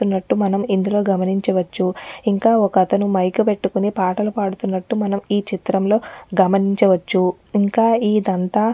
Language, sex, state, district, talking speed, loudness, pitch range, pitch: Telugu, female, Telangana, Nalgonda, 125 wpm, -18 LUFS, 190-210 Hz, 195 Hz